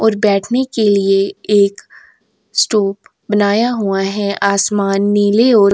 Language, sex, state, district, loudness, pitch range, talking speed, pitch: Hindi, female, Uttar Pradesh, Jyotiba Phule Nagar, -14 LUFS, 200-215 Hz, 135 wpm, 205 Hz